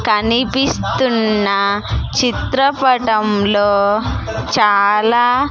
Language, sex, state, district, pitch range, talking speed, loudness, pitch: Telugu, female, Andhra Pradesh, Sri Satya Sai, 200-245 Hz, 35 wpm, -15 LUFS, 210 Hz